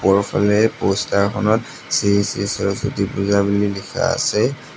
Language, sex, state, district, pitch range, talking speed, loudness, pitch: Assamese, male, Assam, Sonitpur, 100-110 Hz, 115 wpm, -19 LUFS, 100 Hz